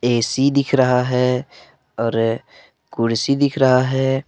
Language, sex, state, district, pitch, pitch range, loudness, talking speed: Hindi, male, Jharkhand, Palamu, 125 Hz, 120-135 Hz, -18 LUFS, 125 wpm